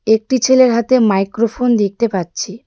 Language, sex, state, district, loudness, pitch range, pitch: Bengali, female, West Bengal, Darjeeling, -14 LUFS, 205-250 Hz, 230 Hz